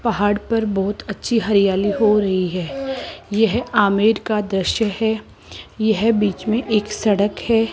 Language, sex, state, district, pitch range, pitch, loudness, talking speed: Hindi, male, Rajasthan, Jaipur, 200-225 Hz, 215 Hz, -19 LUFS, 145 wpm